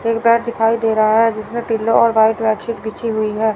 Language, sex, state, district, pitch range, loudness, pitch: Hindi, female, Chandigarh, Chandigarh, 220-230 Hz, -16 LUFS, 225 Hz